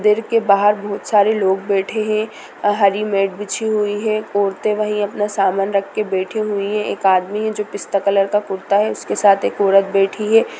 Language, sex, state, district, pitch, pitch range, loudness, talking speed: Hindi, female, Bihar, Sitamarhi, 205 Hz, 195-215 Hz, -17 LUFS, 215 wpm